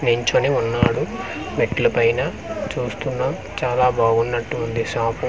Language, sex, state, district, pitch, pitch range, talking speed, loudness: Telugu, male, Andhra Pradesh, Manyam, 120 Hz, 115-145 Hz, 125 wpm, -21 LUFS